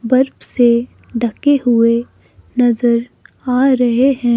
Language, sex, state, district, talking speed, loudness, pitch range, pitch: Hindi, female, Himachal Pradesh, Shimla, 110 wpm, -15 LUFS, 235-255 Hz, 245 Hz